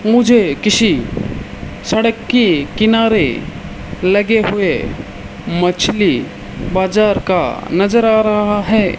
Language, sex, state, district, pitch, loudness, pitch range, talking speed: Hindi, male, Rajasthan, Bikaner, 215 Hz, -14 LUFS, 195-225 Hz, 95 wpm